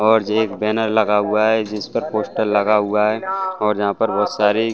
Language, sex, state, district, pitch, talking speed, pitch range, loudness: Hindi, male, Chhattisgarh, Bastar, 105 Hz, 215 wpm, 105-110 Hz, -18 LUFS